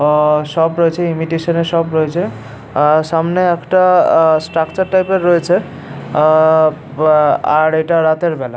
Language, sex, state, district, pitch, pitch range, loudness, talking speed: Bengali, male, West Bengal, Paschim Medinipur, 160 Hz, 155-170 Hz, -13 LUFS, 100 wpm